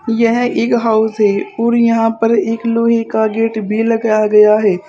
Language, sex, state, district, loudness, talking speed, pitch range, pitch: Hindi, female, Uttar Pradesh, Saharanpur, -13 LUFS, 185 wpm, 215-230 Hz, 225 Hz